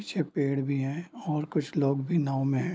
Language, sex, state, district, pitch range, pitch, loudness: Hindi, male, Bihar, Darbhanga, 140-165 Hz, 150 Hz, -29 LUFS